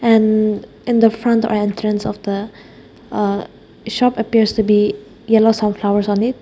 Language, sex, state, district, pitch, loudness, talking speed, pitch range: English, female, Nagaland, Dimapur, 215 Hz, -17 LUFS, 160 wpm, 205-225 Hz